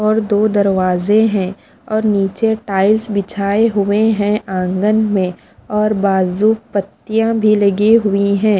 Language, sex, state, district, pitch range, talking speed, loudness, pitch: Hindi, female, Punjab, Fazilka, 200-215 Hz, 135 wpm, -15 LUFS, 205 Hz